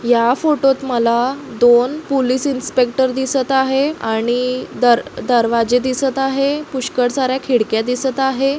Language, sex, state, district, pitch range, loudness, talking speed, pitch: Marathi, female, Maharashtra, Solapur, 245-270 Hz, -16 LUFS, 125 wpm, 260 Hz